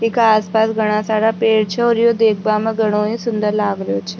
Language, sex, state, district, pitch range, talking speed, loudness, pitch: Rajasthani, female, Rajasthan, Nagaur, 210-225 Hz, 255 wpm, -16 LUFS, 220 Hz